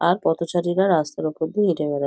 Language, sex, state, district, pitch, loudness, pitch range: Bengali, female, West Bengal, North 24 Parganas, 165 Hz, -22 LUFS, 155-180 Hz